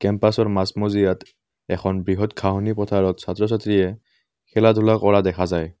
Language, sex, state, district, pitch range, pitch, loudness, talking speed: Assamese, male, Assam, Kamrup Metropolitan, 95-105 Hz, 100 Hz, -20 LUFS, 115 wpm